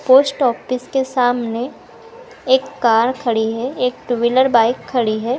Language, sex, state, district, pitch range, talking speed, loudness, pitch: Hindi, female, Karnataka, Bangalore, 235-265 Hz, 155 wpm, -17 LUFS, 250 Hz